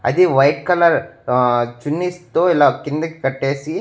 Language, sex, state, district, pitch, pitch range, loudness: Telugu, male, Andhra Pradesh, Annamaya, 145 Hz, 130-170 Hz, -17 LUFS